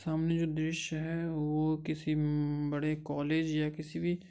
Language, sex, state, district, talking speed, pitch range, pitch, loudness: Hindi, male, Bihar, Madhepura, 165 wpm, 150-160 Hz, 155 Hz, -33 LUFS